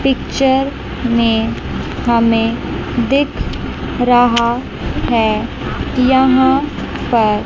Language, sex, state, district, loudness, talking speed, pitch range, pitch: Hindi, male, Chandigarh, Chandigarh, -15 LUFS, 65 wpm, 230-265 Hz, 245 Hz